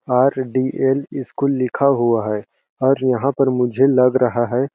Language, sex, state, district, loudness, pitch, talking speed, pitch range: Hindi, male, Chhattisgarh, Balrampur, -18 LUFS, 130 Hz, 150 wpm, 125-135 Hz